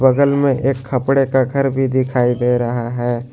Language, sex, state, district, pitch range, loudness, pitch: Hindi, male, Jharkhand, Garhwa, 125-135 Hz, -17 LUFS, 130 Hz